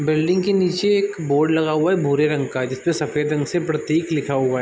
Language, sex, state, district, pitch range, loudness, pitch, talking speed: Hindi, male, Chhattisgarh, Raigarh, 145-175 Hz, -20 LUFS, 155 Hz, 245 wpm